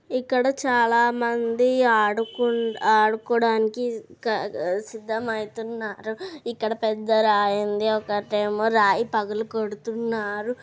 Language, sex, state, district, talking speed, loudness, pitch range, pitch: Telugu, female, Telangana, Nalgonda, 80 wpm, -23 LUFS, 215-235 Hz, 225 Hz